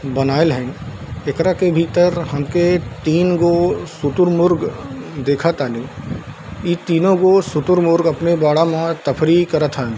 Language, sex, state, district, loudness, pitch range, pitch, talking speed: Hindi, male, Bihar, Darbhanga, -16 LUFS, 145-175 Hz, 165 Hz, 145 wpm